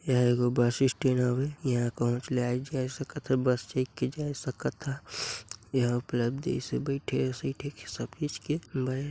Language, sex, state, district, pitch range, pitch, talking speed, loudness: Chhattisgarhi, male, Chhattisgarh, Sarguja, 125-140 Hz, 130 Hz, 190 wpm, -30 LUFS